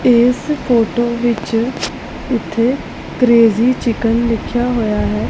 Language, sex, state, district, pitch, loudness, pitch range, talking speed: Punjabi, female, Punjab, Pathankot, 235 Hz, -15 LUFS, 230-245 Hz, 100 wpm